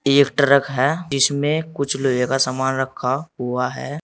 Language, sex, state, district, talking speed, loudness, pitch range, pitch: Hindi, male, Uttar Pradesh, Saharanpur, 165 wpm, -19 LUFS, 130-140 Hz, 135 Hz